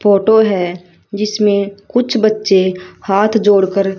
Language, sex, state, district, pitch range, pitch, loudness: Hindi, female, Haryana, Rohtak, 195-215 Hz, 200 Hz, -14 LUFS